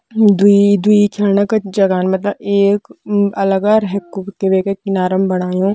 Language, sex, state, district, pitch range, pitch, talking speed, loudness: Kumaoni, female, Uttarakhand, Tehri Garhwal, 190-205 Hz, 200 Hz, 135 wpm, -14 LUFS